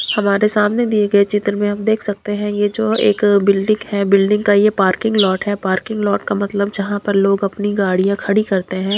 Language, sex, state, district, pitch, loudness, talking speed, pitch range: Hindi, female, Punjab, Kapurthala, 205 Hz, -16 LUFS, 220 wpm, 200-210 Hz